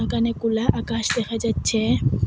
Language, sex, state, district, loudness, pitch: Bengali, female, Assam, Hailakandi, -22 LUFS, 225 Hz